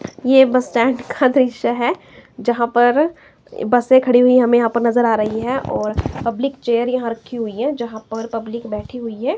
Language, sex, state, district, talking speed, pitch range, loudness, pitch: Hindi, female, Himachal Pradesh, Shimla, 200 wpm, 230-255 Hz, -17 LUFS, 240 Hz